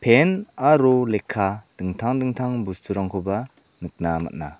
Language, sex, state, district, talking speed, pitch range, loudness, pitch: Garo, male, Meghalaya, South Garo Hills, 105 wpm, 95-130 Hz, -22 LUFS, 110 Hz